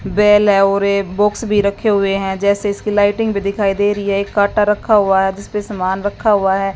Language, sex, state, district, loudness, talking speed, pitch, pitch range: Hindi, female, Haryana, Jhajjar, -15 LUFS, 230 wpm, 200 Hz, 195-210 Hz